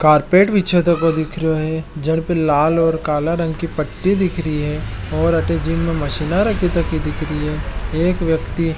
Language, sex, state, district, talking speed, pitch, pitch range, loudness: Marwari, male, Rajasthan, Nagaur, 200 wpm, 160 Hz, 150-170 Hz, -18 LUFS